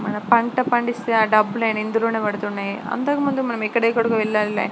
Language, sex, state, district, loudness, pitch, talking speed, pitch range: Telugu, female, Andhra Pradesh, Srikakulam, -20 LUFS, 225 Hz, 115 wpm, 215-240 Hz